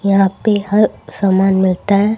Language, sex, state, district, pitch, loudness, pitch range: Hindi, female, Haryana, Rohtak, 200 Hz, -14 LUFS, 190-205 Hz